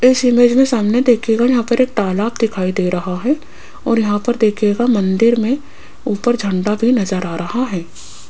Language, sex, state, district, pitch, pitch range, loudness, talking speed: Hindi, female, Rajasthan, Jaipur, 225 Hz, 195-245 Hz, -16 LUFS, 190 wpm